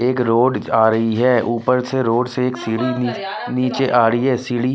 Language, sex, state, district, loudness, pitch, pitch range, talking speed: Hindi, male, Delhi, New Delhi, -18 LUFS, 125 Hz, 115-125 Hz, 200 wpm